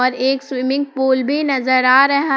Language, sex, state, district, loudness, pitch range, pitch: Hindi, female, Jharkhand, Palamu, -16 LUFS, 255-275 Hz, 265 Hz